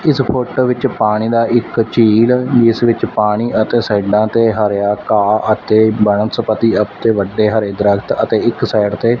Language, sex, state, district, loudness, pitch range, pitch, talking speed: Punjabi, male, Punjab, Fazilka, -14 LUFS, 105-120 Hz, 110 Hz, 165 wpm